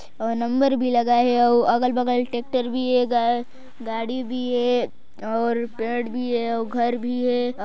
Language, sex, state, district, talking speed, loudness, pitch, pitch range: Hindi, male, Chhattisgarh, Sarguja, 165 wpm, -22 LUFS, 240 Hz, 235-250 Hz